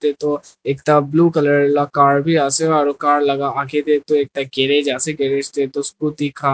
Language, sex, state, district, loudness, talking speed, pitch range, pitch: Nagamese, male, Nagaland, Dimapur, -17 LUFS, 190 wpm, 140-150 Hz, 145 Hz